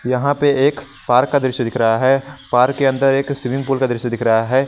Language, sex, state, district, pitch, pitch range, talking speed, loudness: Hindi, male, Jharkhand, Garhwa, 135 Hz, 125-135 Hz, 255 wpm, -17 LUFS